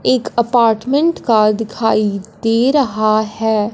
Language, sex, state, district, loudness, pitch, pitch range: Hindi, female, Punjab, Fazilka, -15 LUFS, 225 Hz, 215-240 Hz